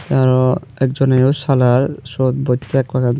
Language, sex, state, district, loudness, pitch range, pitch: Chakma, male, Tripura, Unakoti, -16 LUFS, 130-135 Hz, 130 Hz